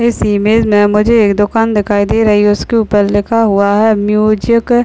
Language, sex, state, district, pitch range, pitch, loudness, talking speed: Hindi, male, Uttar Pradesh, Deoria, 205-225 Hz, 210 Hz, -11 LUFS, 210 wpm